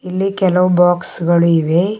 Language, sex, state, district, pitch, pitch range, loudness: Kannada, male, Karnataka, Bidar, 180 Hz, 170-190 Hz, -14 LUFS